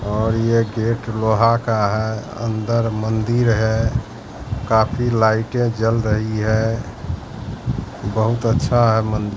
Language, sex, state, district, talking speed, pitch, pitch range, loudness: Hindi, male, Bihar, Katihar, 115 wpm, 110 Hz, 110-115 Hz, -19 LUFS